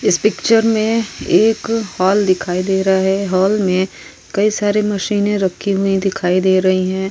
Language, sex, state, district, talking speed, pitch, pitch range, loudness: Hindi, female, Goa, North and South Goa, 170 wpm, 195 Hz, 185-210 Hz, -16 LUFS